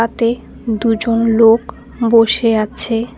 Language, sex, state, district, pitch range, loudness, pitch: Bengali, female, West Bengal, Cooch Behar, 225-230 Hz, -14 LUFS, 230 Hz